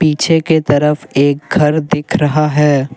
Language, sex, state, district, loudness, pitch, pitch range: Hindi, male, Assam, Kamrup Metropolitan, -13 LUFS, 150 Hz, 145-155 Hz